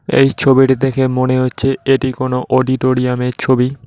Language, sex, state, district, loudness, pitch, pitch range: Bengali, male, West Bengal, Cooch Behar, -14 LUFS, 130 Hz, 125-135 Hz